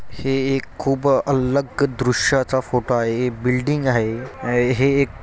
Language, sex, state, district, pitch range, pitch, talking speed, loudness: Marathi, male, Maharashtra, Chandrapur, 125-135 Hz, 130 Hz, 135 wpm, -20 LUFS